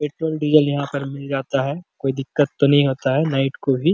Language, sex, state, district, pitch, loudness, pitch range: Hindi, male, Chhattisgarh, Bastar, 140 Hz, -20 LUFS, 135-150 Hz